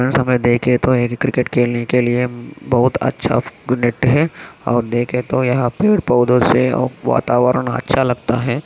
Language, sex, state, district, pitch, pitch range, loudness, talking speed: Hindi, male, Maharashtra, Aurangabad, 125 Hz, 120-130 Hz, -16 LUFS, 145 wpm